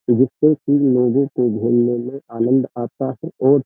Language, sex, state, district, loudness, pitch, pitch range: Hindi, male, Uttar Pradesh, Jyotiba Phule Nagar, -18 LUFS, 130 Hz, 120-140 Hz